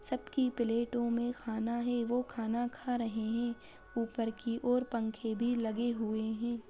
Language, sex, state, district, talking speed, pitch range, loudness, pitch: Bajjika, female, Bihar, Vaishali, 160 wpm, 225-245 Hz, -35 LUFS, 235 Hz